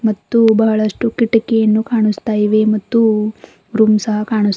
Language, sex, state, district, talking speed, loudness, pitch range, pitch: Kannada, female, Karnataka, Bidar, 105 wpm, -14 LUFS, 215-225 Hz, 220 Hz